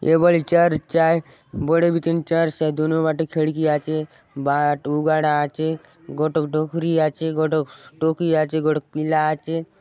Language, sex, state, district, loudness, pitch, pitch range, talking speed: Halbi, male, Chhattisgarh, Bastar, -21 LUFS, 155 Hz, 155-165 Hz, 145 wpm